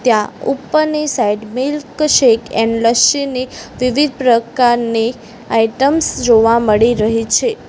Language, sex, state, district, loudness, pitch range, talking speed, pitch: Gujarati, female, Gujarat, Gandhinagar, -14 LUFS, 225-275 Hz, 110 wpm, 240 Hz